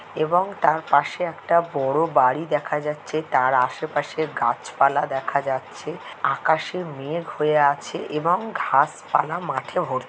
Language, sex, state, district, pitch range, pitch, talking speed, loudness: Bengali, male, West Bengal, Jhargram, 140-165 Hz, 150 Hz, 130 wpm, -22 LUFS